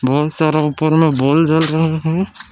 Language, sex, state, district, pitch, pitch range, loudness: Hindi, male, Jharkhand, Palamu, 155 Hz, 150-160 Hz, -15 LUFS